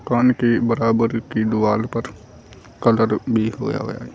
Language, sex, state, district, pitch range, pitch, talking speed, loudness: Hindi, male, Uttar Pradesh, Saharanpur, 110-115 Hz, 115 Hz, 160 wpm, -20 LUFS